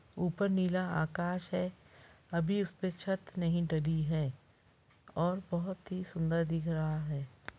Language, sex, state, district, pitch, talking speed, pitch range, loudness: Hindi, female, Bihar, Saran, 170 Hz, 140 wpm, 160-185 Hz, -35 LUFS